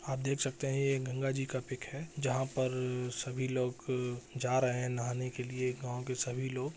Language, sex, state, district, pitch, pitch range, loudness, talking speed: Hindi, male, Bihar, Jahanabad, 130 Hz, 125-135 Hz, -35 LUFS, 220 wpm